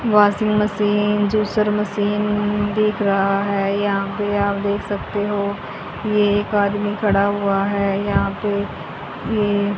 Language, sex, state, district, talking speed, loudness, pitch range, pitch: Hindi, female, Haryana, Charkhi Dadri, 140 wpm, -19 LUFS, 200-210 Hz, 205 Hz